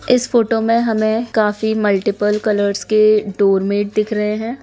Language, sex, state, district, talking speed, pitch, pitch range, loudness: Hindi, female, Bihar, Araria, 155 wpm, 215 Hz, 205-225 Hz, -16 LUFS